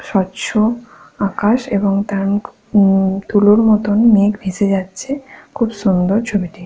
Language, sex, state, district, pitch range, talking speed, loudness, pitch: Bengali, female, West Bengal, Paschim Medinipur, 195-225 Hz, 125 wpm, -15 LUFS, 205 Hz